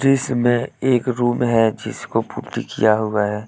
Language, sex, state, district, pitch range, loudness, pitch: Hindi, male, Jharkhand, Deoghar, 110-125 Hz, -19 LUFS, 120 Hz